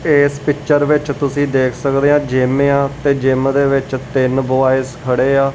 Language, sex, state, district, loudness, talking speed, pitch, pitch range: Punjabi, male, Punjab, Kapurthala, -15 LUFS, 175 wpm, 135 Hz, 130-145 Hz